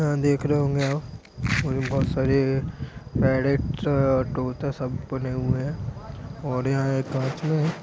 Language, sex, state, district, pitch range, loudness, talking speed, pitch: Hindi, male, Bihar, Gopalganj, 130-140 Hz, -25 LUFS, 140 wpm, 135 Hz